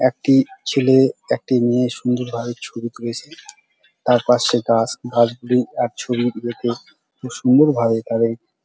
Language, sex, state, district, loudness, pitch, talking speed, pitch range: Bengali, male, West Bengal, Dakshin Dinajpur, -19 LUFS, 120 Hz, 125 wpm, 120-125 Hz